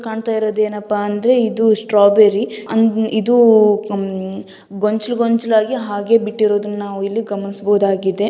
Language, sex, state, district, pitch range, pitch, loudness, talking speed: Kannada, female, Karnataka, Gulbarga, 205-225 Hz, 215 Hz, -16 LUFS, 125 wpm